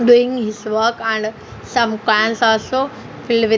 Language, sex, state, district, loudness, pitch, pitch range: English, female, Punjab, Fazilka, -17 LUFS, 225 Hz, 220-240 Hz